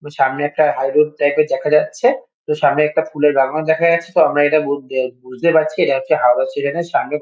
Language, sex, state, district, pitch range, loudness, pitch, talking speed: Bengali, male, West Bengal, Kolkata, 135-155 Hz, -16 LUFS, 150 Hz, 235 wpm